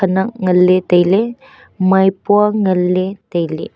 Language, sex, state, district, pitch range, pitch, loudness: Wancho, female, Arunachal Pradesh, Longding, 180-200 Hz, 190 Hz, -14 LUFS